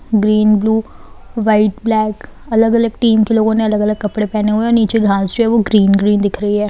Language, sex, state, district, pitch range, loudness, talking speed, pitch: Hindi, female, Bihar, Saran, 210-225 Hz, -14 LUFS, 230 wpm, 215 Hz